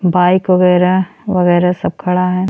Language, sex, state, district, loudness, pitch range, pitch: Bhojpuri, female, Uttar Pradesh, Ghazipur, -13 LUFS, 180-185 Hz, 180 Hz